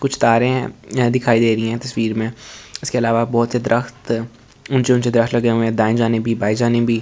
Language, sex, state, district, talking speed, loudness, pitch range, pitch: Hindi, male, Delhi, New Delhi, 215 wpm, -18 LUFS, 115-120 Hz, 115 Hz